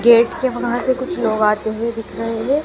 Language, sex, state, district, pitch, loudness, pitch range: Hindi, female, Madhya Pradesh, Dhar, 235 Hz, -19 LUFS, 225-245 Hz